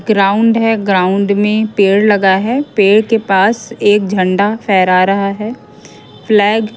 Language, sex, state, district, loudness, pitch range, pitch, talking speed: Hindi, female, Haryana, Jhajjar, -12 LUFS, 195-220 Hz, 205 Hz, 150 wpm